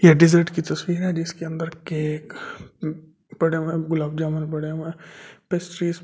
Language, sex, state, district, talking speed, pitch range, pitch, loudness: Hindi, male, Delhi, New Delhi, 150 wpm, 155-170 Hz, 165 Hz, -23 LUFS